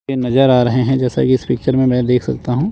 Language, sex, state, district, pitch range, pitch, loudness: Hindi, male, Chandigarh, Chandigarh, 125-130 Hz, 130 Hz, -15 LUFS